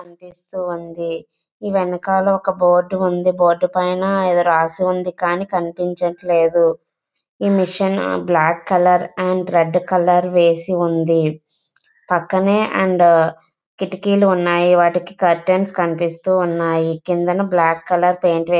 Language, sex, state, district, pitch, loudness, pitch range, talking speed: Telugu, female, Andhra Pradesh, Visakhapatnam, 180 Hz, -17 LUFS, 170-185 Hz, 115 wpm